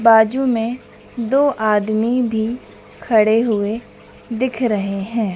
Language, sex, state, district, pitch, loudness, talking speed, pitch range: Hindi, female, Madhya Pradesh, Dhar, 225 Hz, -18 LUFS, 110 wpm, 215-245 Hz